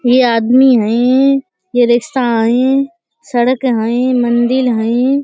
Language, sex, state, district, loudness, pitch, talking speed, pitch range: Hindi, female, Uttar Pradesh, Budaun, -12 LUFS, 245 Hz, 125 wpm, 235-265 Hz